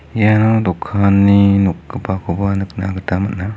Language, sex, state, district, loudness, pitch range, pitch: Garo, male, Meghalaya, West Garo Hills, -15 LUFS, 95-105 Hz, 100 Hz